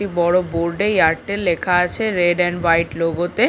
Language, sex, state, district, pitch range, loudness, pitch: Bengali, female, West Bengal, Paschim Medinipur, 170-200 Hz, -18 LUFS, 175 Hz